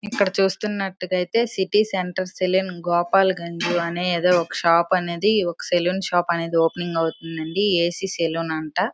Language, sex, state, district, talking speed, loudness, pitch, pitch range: Telugu, female, Andhra Pradesh, Srikakulam, 150 wpm, -22 LUFS, 180 Hz, 170-195 Hz